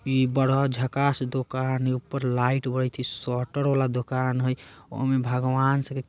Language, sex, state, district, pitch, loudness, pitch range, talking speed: Bajjika, male, Bihar, Vaishali, 130 Hz, -26 LUFS, 125-135 Hz, 165 wpm